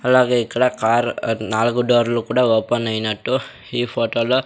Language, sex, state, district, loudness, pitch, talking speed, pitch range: Telugu, male, Andhra Pradesh, Sri Satya Sai, -19 LUFS, 120 Hz, 160 wpm, 115-125 Hz